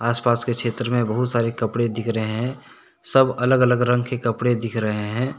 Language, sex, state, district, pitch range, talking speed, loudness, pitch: Hindi, male, Jharkhand, Deoghar, 115-125 Hz, 200 wpm, -21 LUFS, 120 Hz